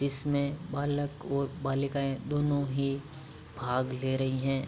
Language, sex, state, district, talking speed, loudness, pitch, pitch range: Hindi, male, Uttar Pradesh, Hamirpur, 130 wpm, -31 LUFS, 140 Hz, 135-145 Hz